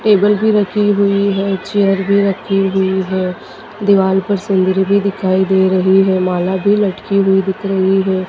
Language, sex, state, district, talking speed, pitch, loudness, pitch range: Hindi, female, Madhya Pradesh, Dhar, 180 wpm, 195 Hz, -14 LUFS, 190-200 Hz